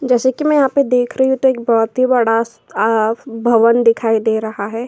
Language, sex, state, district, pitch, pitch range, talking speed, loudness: Hindi, female, Uttar Pradesh, Jyotiba Phule Nagar, 235 Hz, 225-260 Hz, 235 wpm, -15 LUFS